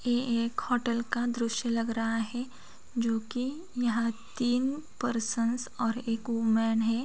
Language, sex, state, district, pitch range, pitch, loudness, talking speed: Hindi, female, Bihar, Gopalganj, 230-245 Hz, 235 Hz, -30 LUFS, 145 wpm